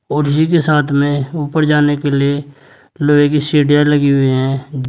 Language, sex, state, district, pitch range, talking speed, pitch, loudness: Hindi, male, Uttar Pradesh, Saharanpur, 140-150 Hz, 185 wpm, 145 Hz, -14 LUFS